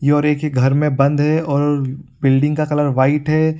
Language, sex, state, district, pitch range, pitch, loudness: Hindi, male, Bihar, Supaul, 140-150 Hz, 145 Hz, -16 LUFS